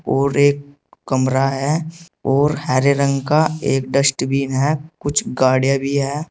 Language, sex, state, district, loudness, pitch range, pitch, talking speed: Hindi, male, Uttar Pradesh, Saharanpur, -18 LUFS, 135-150 Hz, 140 Hz, 140 wpm